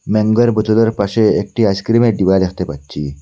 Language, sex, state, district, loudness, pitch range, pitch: Bengali, male, Assam, Hailakandi, -15 LUFS, 95-115 Hz, 110 Hz